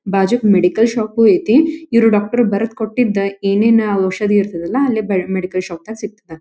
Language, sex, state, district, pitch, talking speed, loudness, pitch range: Kannada, female, Karnataka, Dharwad, 210 Hz, 160 wpm, -15 LUFS, 195-230 Hz